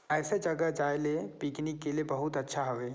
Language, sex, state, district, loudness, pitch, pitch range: Chhattisgarhi, male, Chhattisgarh, Sarguja, -33 LUFS, 150 Hz, 145-155 Hz